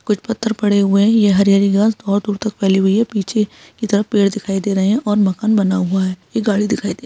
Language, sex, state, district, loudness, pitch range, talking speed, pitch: Hindi, female, Bihar, Saharsa, -16 LUFS, 195-215 Hz, 265 wpm, 205 Hz